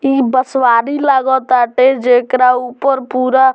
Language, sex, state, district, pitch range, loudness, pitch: Bhojpuri, male, Bihar, Muzaffarpur, 250-265 Hz, -12 LUFS, 255 Hz